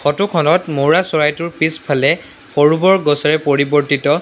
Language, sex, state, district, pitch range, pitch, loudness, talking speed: Assamese, male, Assam, Sonitpur, 145-165 Hz, 150 Hz, -14 LUFS, 115 wpm